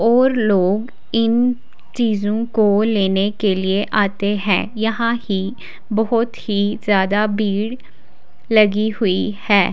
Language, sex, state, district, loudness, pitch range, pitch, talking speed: Hindi, female, Delhi, New Delhi, -18 LUFS, 200-230 Hz, 210 Hz, 115 wpm